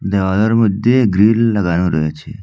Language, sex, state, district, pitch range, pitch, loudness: Bengali, male, Assam, Hailakandi, 90-115 Hz, 100 Hz, -14 LUFS